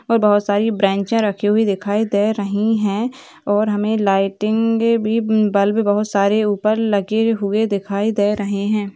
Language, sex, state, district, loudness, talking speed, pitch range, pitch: Hindi, female, Maharashtra, Sindhudurg, -18 LUFS, 160 wpm, 205-220 Hz, 210 Hz